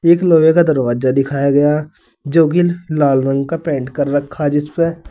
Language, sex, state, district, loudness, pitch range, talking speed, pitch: Hindi, male, Uttar Pradesh, Saharanpur, -15 LUFS, 140-165 Hz, 175 wpm, 150 Hz